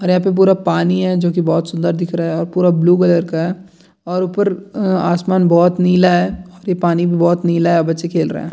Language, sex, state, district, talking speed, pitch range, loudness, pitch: Hindi, male, Bihar, Jamui, 260 wpm, 170-185 Hz, -15 LUFS, 175 Hz